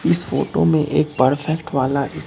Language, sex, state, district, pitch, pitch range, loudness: Hindi, male, Bihar, Katihar, 145 Hz, 135-155 Hz, -19 LUFS